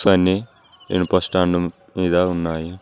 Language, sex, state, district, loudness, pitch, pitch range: Telugu, male, Telangana, Mahabubabad, -20 LUFS, 90 Hz, 85-95 Hz